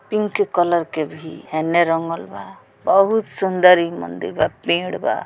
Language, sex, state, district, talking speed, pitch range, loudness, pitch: Bhojpuri, female, Bihar, Gopalganj, 160 wpm, 160-195 Hz, -19 LUFS, 170 Hz